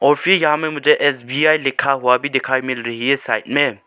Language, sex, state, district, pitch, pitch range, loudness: Hindi, male, Arunachal Pradesh, Lower Dibang Valley, 140 Hz, 130-150 Hz, -17 LUFS